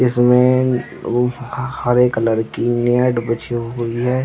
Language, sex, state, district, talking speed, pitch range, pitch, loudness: Hindi, male, Chhattisgarh, Raigarh, 125 wpm, 120-125 Hz, 120 Hz, -17 LUFS